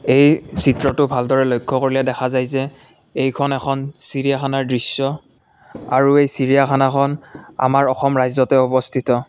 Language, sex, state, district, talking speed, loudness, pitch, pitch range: Assamese, male, Assam, Kamrup Metropolitan, 125 wpm, -17 LUFS, 135 Hz, 130-140 Hz